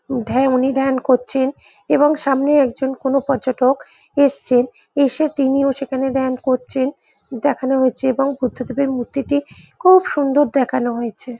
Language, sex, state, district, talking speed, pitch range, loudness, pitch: Bengali, female, West Bengal, Jhargram, 125 wpm, 255-280 Hz, -18 LUFS, 265 Hz